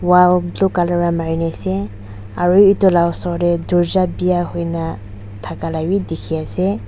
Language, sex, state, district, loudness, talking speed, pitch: Nagamese, female, Nagaland, Dimapur, -17 LUFS, 185 wpm, 170 Hz